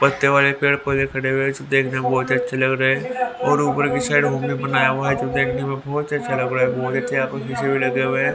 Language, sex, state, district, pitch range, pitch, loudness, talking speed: Hindi, male, Haryana, Rohtak, 130-140 Hz, 135 Hz, -20 LUFS, 275 wpm